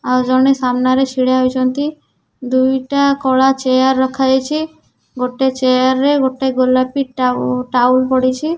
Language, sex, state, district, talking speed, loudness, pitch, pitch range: Odia, female, Odisha, Nuapada, 120 wpm, -15 LUFS, 260 Hz, 255-270 Hz